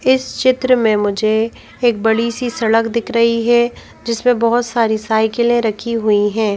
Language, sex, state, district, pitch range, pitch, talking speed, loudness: Hindi, female, Madhya Pradesh, Bhopal, 220-240 Hz, 230 Hz, 165 wpm, -16 LUFS